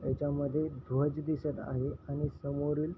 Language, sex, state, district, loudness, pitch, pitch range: Marathi, male, Maharashtra, Chandrapur, -34 LUFS, 145 Hz, 140-150 Hz